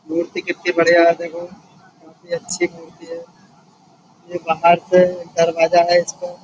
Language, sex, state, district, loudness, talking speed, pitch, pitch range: Hindi, male, Uttar Pradesh, Budaun, -17 LUFS, 150 wpm, 175 Hz, 170-175 Hz